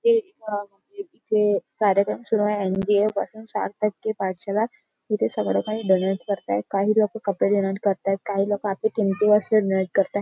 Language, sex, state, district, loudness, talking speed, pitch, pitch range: Marathi, female, Maharashtra, Nagpur, -23 LUFS, 160 wpm, 205 Hz, 195-215 Hz